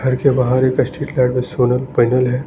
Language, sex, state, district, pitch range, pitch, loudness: Hindi, male, Arunachal Pradesh, Lower Dibang Valley, 125-130 Hz, 130 Hz, -16 LUFS